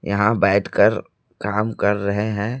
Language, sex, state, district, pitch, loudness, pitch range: Hindi, male, Chhattisgarh, Raipur, 100 Hz, -20 LUFS, 100-105 Hz